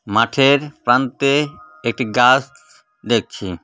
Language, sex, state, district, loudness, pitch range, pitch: Bengali, male, West Bengal, Cooch Behar, -17 LUFS, 120-150 Hz, 135 Hz